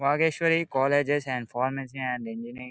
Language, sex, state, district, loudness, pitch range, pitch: Telugu, male, Telangana, Karimnagar, -27 LUFS, 125-145 Hz, 135 Hz